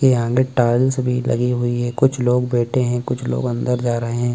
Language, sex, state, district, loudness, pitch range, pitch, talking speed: Bhojpuri, male, Bihar, Saran, -19 LUFS, 120-125 Hz, 120 Hz, 235 wpm